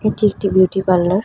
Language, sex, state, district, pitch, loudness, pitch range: Bengali, female, West Bengal, North 24 Parganas, 190 Hz, -16 LUFS, 185-210 Hz